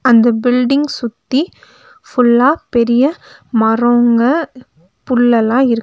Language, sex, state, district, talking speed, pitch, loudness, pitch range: Tamil, female, Tamil Nadu, Nilgiris, 80 wpm, 245 Hz, -13 LUFS, 235-265 Hz